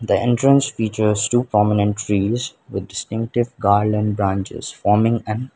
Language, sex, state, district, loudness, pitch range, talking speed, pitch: English, male, Sikkim, Gangtok, -19 LUFS, 105-120 Hz, 140 wpm, 105 Hz